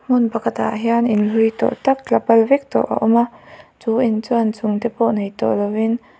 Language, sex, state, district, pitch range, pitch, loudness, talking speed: Mizo, female, Mizoram, Aizawl, 220-235 Hz, 230 Hz, -18 LUFS, 220 wpm